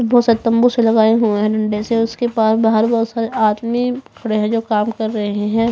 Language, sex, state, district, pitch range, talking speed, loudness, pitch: Hindi, female, Maharashtra, Gondia, 215-230 Hz, 240 wpm, -16 LUFS, 225 Hz